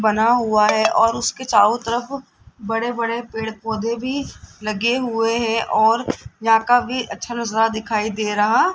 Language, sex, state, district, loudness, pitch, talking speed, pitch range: Hindi, female, Rajasthan, Jaipur, -19 LUFS, 225 Hz, 130 wpm, 220-240 Hz